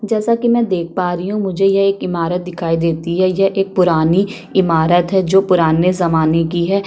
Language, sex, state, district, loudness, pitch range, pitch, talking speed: Hindi, female, Chhattisgarh, Kabirdham, -15 LUFS, 170-195 Hz, 180 Hz, 210 wpm